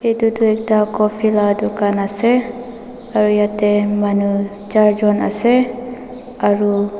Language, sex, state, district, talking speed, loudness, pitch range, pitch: Nagamese, female, Nagaland, Dimapur, 105 wpm, -16 LUFS, 205-240 Hz, 210 Hz